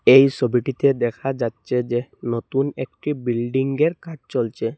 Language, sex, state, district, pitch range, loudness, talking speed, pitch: Bengali, male, Assam, Hailakandi, 120-135 Hz, -21 LUFS, 125 wpm, 130 Hz